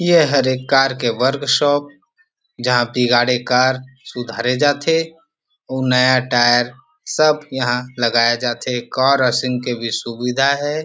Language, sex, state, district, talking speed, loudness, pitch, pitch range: Chhattisgarhi, male, Chhattisgarh, Rajnandgaon, 145 wpm, -17 LUFS, 130 Hz, 120-145 Hz